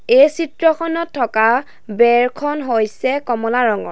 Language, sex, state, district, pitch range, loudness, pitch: Assamese, female, Assam, Sonitpur, 235-300 Hz, -16 LUFS, 255 Hz